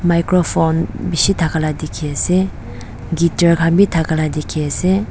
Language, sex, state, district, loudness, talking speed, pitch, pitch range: Nagamese, female, Nagaland, Dimapur, -16 LUFS, 150 wpm, 165 Hz, 155-175 Hz